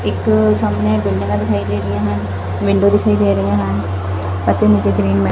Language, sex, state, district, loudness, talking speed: Punjabi, female, Punjab, Fazilka, -16 LUFS, 180 wpm